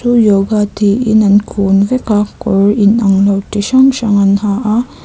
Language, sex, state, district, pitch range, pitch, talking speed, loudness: Mizo, female, Mizoram, Aizawl, 200-225 Hz, 210 Hz, 180 wpm, -11 LUFS